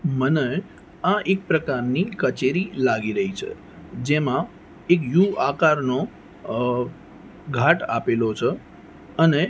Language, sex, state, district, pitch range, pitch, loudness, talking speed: Gujarati, male, Gujarat, Gandhinagar, 130-185 Hz, 155 Hz, -22 LUFS, 115 wpm